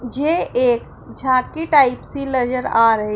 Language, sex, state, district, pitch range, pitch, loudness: Hindi, female, Punjab, Pathankot, 245-280 Hz, 255 Hz, -18 LUFS